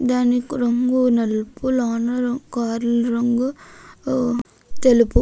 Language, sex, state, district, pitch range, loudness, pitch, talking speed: Telugu, female, Andhra Pradesh, Krishna, 235-255 Hz, -20 LUFS, 245 Hz, 45 wpm